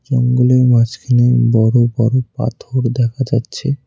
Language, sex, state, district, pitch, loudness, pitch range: Bengali, male, West Bengal, Cooch Behar, 125 Hz, -14 LUFS, 120-130 Hz